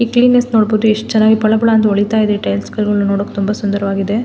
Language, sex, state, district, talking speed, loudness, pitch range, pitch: Kannada, female, Karnataka, Mysore, 200 wpm, -14 LUFS, 205-220 Hz, 215 Hz